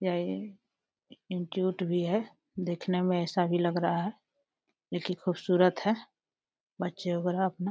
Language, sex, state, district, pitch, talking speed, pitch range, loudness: Hindi, female, Uttar Pradesh, Deoria, 180 Hz, 140 wpm, 175-190 Hz, -31 LUFS